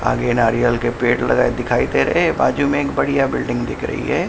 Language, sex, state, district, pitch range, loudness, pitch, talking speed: Hindi, male, Maharashtra, Mumbai Suburban, 70-120 Hz, -18 LUFS, 120 Hz, 235 wpm